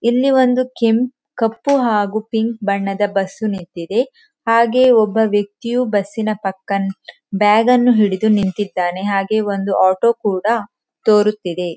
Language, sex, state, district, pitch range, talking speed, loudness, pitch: Kannada, female, Karnataka, Dakshina Kannada, 200-235 Hz, 110 wpm, -17 LUFS, 215 Hz